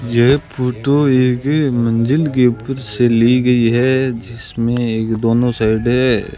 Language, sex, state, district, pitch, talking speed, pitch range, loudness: Hindi, male, Rajasthan, Bikaner, 120 Hz, 140 wpm, 115-130 Hz, -15 LUFS